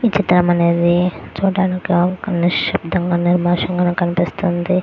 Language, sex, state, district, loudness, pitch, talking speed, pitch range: Telugu, female, Andhra Pradesh, Guntur, -17 LUFS, 180 Hz, 110 wpm, 175-185 Hz